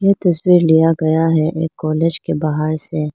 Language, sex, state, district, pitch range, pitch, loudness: Hindi, female, Arunachal Pradesh, Lower Dibang Valley, 155-165 Hz, 160 Hz, -16 LUFS